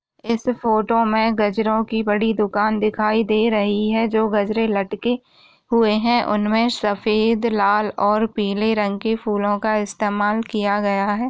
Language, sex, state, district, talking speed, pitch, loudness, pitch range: Hindi, female, Maharashtra, Solapur, 155 wpm, 215 Hz, -19 LUFS, 210-225 Hz